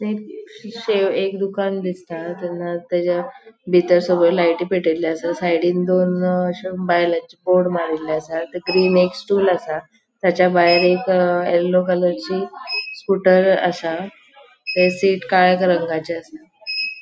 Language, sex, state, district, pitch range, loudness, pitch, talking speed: Konkani, female, Goa, North and South Goa, 175-190 Hz, -19 LUFS, 180 Hz, 130 wpm